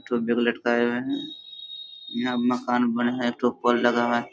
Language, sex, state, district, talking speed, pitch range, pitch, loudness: Hindi, male, Bihar, Darbhanga, 165 wpm, 120-125 Hz, 120 Hz, -24 LUFS